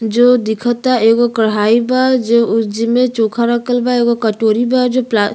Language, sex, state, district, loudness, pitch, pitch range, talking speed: Bhojpuri, female, Uttar Pradesh, Ghazipur, -13 LUFS, 235 Hz, 225-245 Hz, 190 wpm